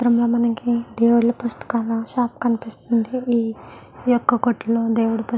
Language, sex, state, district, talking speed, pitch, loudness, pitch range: Telugu, female, Andhra Pradesh, Guntur, 135 wpm, 235 Hz, -20 LUFS, 230-240 Hz